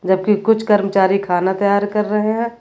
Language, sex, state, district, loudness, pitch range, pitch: Hindi, female, Uttar Pradesh, Lucknow, -16 LUFS, 190-210 Hz, 200 Hz